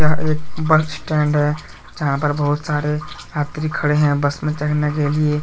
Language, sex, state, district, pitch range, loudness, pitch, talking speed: Hindi, male, Jharkhand, Deoghar, 150-155 Hz, -19 LUFS, 150 Hz, 190 wpm